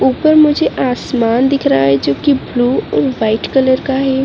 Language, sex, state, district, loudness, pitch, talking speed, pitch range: Hindi, female, Uttarakhand, Uttarkashi, -13 LUFS, 260 Hz, 200 wpm, 230-275 Hz